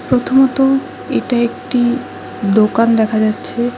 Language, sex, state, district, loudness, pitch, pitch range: Bengali, female, West Bengal, Alipurduar, -15 LUFS, 240 Hz, 220-255 Hz